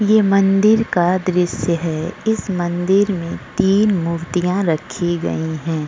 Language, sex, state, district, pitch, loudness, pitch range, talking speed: Hindi, female, Uttar Pradesh, Budaun, 180 Hz, -18 LUFS, 170-195 Hz, 135 wpm